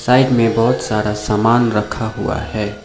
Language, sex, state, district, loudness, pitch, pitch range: Hindi, male, Sikkim, Gangtok, -16 LUFS, 110 Hz, 105-120 Hz